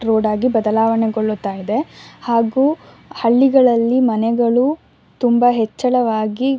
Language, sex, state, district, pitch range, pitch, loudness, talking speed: Kannada, female, Karnataka, Shimoga, 220-255 Hz, 230 Hz, -16 LUFS, 90 wpm